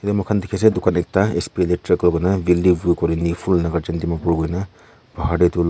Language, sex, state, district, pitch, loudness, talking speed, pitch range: Nagamese, male, Nagaland, Kohima, 90 Hz, -19 LUFS, 220 wpm, 85-95 Hz